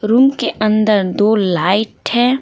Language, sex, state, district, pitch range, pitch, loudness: Hindi, female, Bihar, Patna, 200-240 Hz, 215 Hz, -14 LUFS